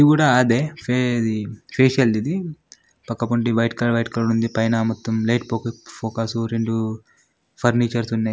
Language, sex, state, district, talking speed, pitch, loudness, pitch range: Telugu, male, Telangana, Nalgonda, 165 wpm, 115 Hz, -21 LUFS, 115-125 Hz